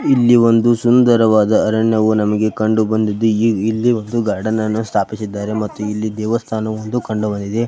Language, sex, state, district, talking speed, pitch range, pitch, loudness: Kannada, male, Karnataka, Belgaum, 115 wpm, 110-115 Hz, 110 Hz, -16 LUFS